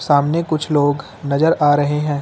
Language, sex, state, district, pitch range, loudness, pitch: Hindi, male, Uttar Pradesh, Lucknow, 145-155 Hz, -17 LUFS, 145 Hz